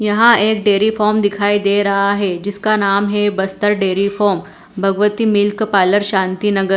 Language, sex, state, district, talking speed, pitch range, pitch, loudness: Hindi, female, Punjab, Fazilka, 170 wpm, 195-210 Hz, 205 Hz, -15 LUFS